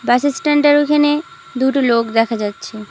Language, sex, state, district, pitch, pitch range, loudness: Bengali, female, West Bengal, Cooch Behar, 270 Hz, 230-295 Hz, -15 LUFS